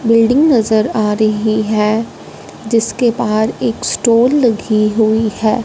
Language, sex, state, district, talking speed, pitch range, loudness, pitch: Hindi, female, Punjab, Fazilka, 125 wpm, 215-235 Hz, -14 LUFS, 220 Hz